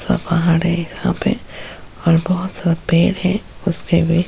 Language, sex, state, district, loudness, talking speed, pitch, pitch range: Hindi, female, Chhattisgarh, Sukma, -17 LUFS, 180 wpm, 170 Hz, 170-185 Hz